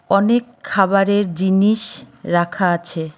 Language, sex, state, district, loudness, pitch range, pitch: Bengali, female, West Bengal, Cooch Behar, -17 LUFS, 175-210 Hz, 195 Hz